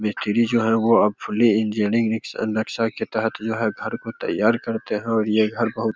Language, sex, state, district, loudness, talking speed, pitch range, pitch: Hindi, male, Bihar, Begusarai, -22 LUFS, 240 wpm, 110-115 Hz, 110 Hz